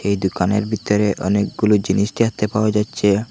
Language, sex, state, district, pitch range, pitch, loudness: Bengali, male, Assam, Hailakandi, 100-105 Hz, 105 Hz, -18 LUFS